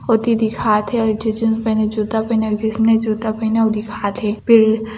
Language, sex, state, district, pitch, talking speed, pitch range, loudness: Hindi, female, Chhattisgarh, Bilaspur, 220 Hz, 230 wpm, 215-225 Hz, -17 LUFS